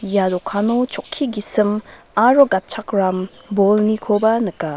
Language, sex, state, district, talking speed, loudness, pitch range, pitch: Garo, female, Meghalaya, West Garo Hills, 100 wpm, -18 LUFS, 195-225 Hz, 210 Hz